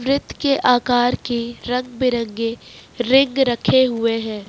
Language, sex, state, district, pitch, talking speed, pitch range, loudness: Hindi, male, Jharkhand, Ranchi, 245 Hz, 135 wpm, 235-260 Hz, -19 LUFS